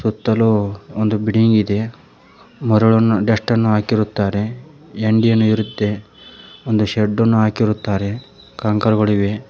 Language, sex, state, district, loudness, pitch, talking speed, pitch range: Kannada, male, Karnataka, Koppal, -17 LUFS, 110 Hz, 90 wpm, 105-115 Hz